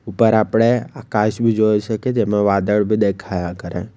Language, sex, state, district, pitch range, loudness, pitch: Gujarati, male, Gujarat, Valsad, 105-115 Hz, -18 LUFS, 110 Hz